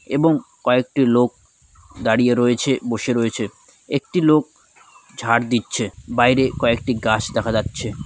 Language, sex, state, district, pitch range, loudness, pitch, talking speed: Bengali, male, West Bengal, Dakshin Dinajpur, 115-130 Hz, -19 LUFS, 120 Hz, 135 wpm